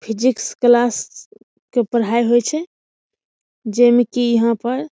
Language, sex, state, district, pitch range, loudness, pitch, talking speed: Maithili, female, Bihar, Samastipur, 235-245 Hz, -17 LUFS, 240 Hz, 145 wpm